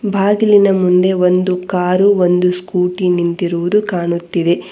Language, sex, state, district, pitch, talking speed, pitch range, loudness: Kannada, female, Karnataka, Bangalore, 180 Hz, 100 wpm, 180-190 Hz, -14 LUFS